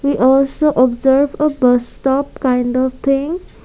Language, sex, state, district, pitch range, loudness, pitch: English, female, Assam, Kamrup Metropolitan, 255-280 Hz, -15 LUFS, 270 Hz